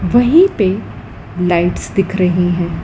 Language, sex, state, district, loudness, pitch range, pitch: Hindi, female, Madhya Pradesh, Dhar, -14 LUFS, 170-195 Hz, 180 Hz